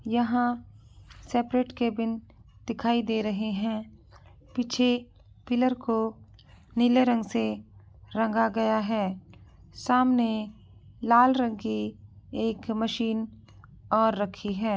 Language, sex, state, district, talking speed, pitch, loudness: Angika, male, Bihar, Madhepura, 100 wpm, 220 Hz, -27 LUFS